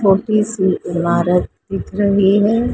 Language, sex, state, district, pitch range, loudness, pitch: Hindi, female, Maharashtra, Mumbai Suburban, 180-210 Hz, -16 LUFS, 195 Hz